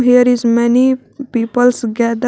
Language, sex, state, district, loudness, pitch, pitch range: English, female, Jharkhand, Garhwa, -14 LUFS, 245 Hz, 235-250 Hz